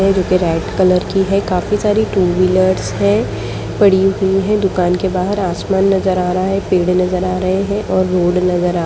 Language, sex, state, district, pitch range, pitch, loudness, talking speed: Hindi, female, Bihar, Jamui, 180-195 Hz, 185 Hz, -15 LUFS, 195 wpm